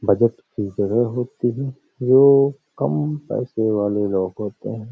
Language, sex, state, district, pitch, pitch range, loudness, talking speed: Hindi, male, Uttar Pradesh, Hamirpur, 110 Hz, 100-125 Hz, -20 LUFS, 135 wpm